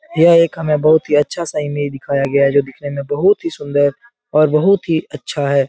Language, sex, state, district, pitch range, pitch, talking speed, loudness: Hindi, male, Bihar, Jahanabad, 140-170 Hz, 150 Hz, 240 wpm, -15 LUFS